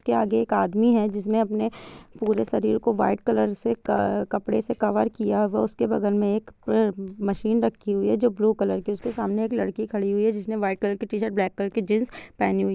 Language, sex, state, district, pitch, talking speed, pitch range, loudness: Hindi, female, Bihar, Gopalganj, 210 Hz, 235 wpm, 200-220 Hz, -24 LUFS